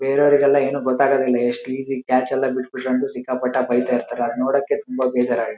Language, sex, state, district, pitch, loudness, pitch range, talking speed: Kannada, male, Karnataka, Shimoga, 130 Hz, -20 LUFS, 125-135 Hz, 180 wpm